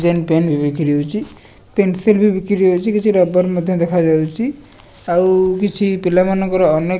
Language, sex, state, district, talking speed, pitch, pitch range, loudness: Odia, male, Odisha, Nuapada, 155 wpm, 185 Hz, 170-200 Hz, -15 LUFS